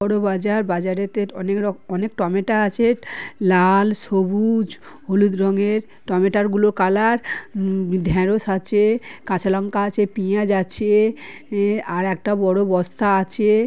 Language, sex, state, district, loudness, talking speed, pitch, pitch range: Bengali, male, West Bengal, Kolkata, -20 LUFS, 125 wpm, 200 Hz, 190-210 Hz